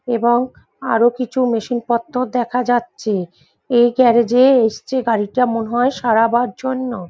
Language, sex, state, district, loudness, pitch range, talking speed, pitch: Bengali, female, West Bengal, Jhargram, -17 LUFS, 230-250 Hz, 125 wpm, 240 Hz